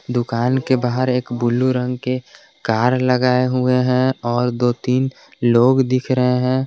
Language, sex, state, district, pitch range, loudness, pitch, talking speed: Hindi, male, Jharkhand, Garhwa, 125-130 Hz, -18 LUFS, 125 Hz, 160 wpm